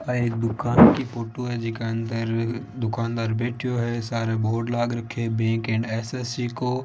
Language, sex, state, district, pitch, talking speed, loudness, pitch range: Marwari, male, Rajasthan, Nagaur, 115 Hz, 165 wpm, -24 LUFS, 115-120 Hz